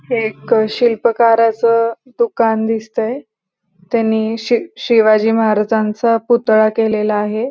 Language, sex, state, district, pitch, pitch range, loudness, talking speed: Marathi, female, Maharashtra, Pune, 225 Hz, 215-235 Hz, -15 LUFS, 105 wpm